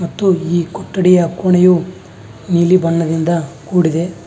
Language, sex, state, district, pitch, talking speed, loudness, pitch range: Kannada, male, Karnataka, Bangalore, 175 Hz, 100 wpm, -14 LUFS, 165-180 Hz